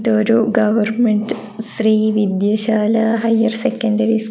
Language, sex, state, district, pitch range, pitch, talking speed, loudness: Malayalam, female, Kerala, Kasaragod, 215-225 Hz, 220 Hz, 85 wpm, -16 LUFS